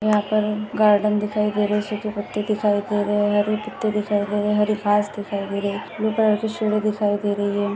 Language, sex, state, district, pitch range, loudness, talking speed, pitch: Hindi, female, Maharashtra, Aurangabad, 205-215 Hz, -22 LUFS, 255 wpm, 210 Hz